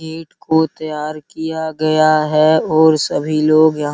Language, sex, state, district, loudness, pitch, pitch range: Hindi, male, Bihar, Araria, -15 LUFS, 155 Hz, 155-160 Hz